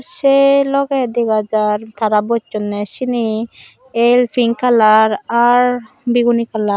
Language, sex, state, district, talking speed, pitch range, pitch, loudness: Chakma, female, Tripura, Dhalai, 105 wpm, 215-250 Hz, 235 Hz, -15 LUFS